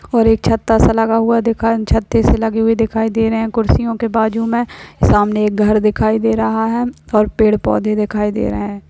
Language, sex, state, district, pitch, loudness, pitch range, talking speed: Hindi, female, Maharashtra, Chandrapur, 225 Hz, -15 LUFS, 215-225 Hz, 220 wpm